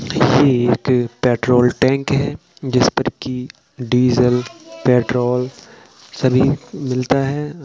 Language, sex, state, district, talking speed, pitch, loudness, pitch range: Hindi, male, Uttar Pradesh, Jalaun, 100 wpm, 125 Hz, -17 LUFS, 125-135 Hz